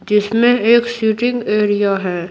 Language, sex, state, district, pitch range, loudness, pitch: Hindi, female, Bihar, Patna, 205-235 Hz, -15 LUFS, 215 Hz